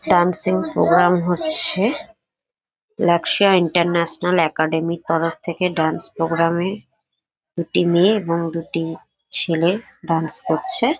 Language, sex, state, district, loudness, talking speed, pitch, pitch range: Bengali, female, West Bengal, Paschim Medinipur, -19 LUFS, 95 wpm, 175 Hz, 165-190 Hz